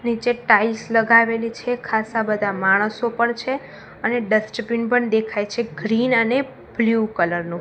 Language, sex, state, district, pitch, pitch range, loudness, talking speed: Gujarati, female, Gujarat, Gandhinagar, 230 Hz, 215-235 Hz, -20 LUFS, 150 wpm